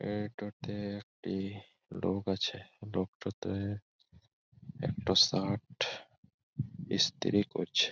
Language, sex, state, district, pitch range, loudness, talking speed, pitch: Bengali, male, West Bengal, Malda, 95-105 Hz, -34 LUFS, 70 wpm, 100 Hz